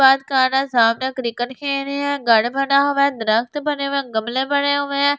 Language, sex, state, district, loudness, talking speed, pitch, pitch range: Hindi, female, Delhi, New Delhi, -19 LUFS, 195 wpm, 275 Hz, 245-280 Hz